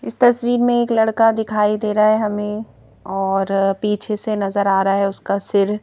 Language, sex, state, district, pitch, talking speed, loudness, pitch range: Hindi, female, Madhya Pradesh, Bhopal, 210 Hz, 205 wpm, -18 LUFS, 195-220 Hz